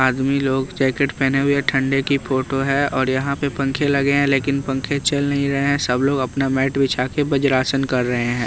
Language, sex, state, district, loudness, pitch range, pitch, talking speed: Hindi, male, Bihar, West Champaran, -19 LUFS, 130-140 Hz, 135 Hz, 220 wpm